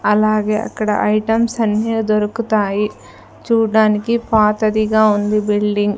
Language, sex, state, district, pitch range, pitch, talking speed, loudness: Telugu, female, Andhra Pradesh, Sri Satya Sai, 210-220 Hz, 215 Hz, 100 wpm, -16 LUFS